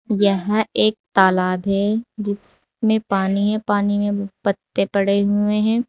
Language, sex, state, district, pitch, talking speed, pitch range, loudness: Hindi, female, Uttar Pradesh, Saharanpur, 205 Hz, 130 wpm, 200-215 Hz, -19 LUFS